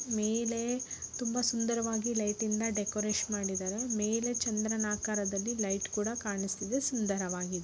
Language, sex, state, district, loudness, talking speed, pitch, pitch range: Kannada, female, Karnataka, Bellary, -32 LUFS, 125 wpm, 215 Hz, 205-230 Hz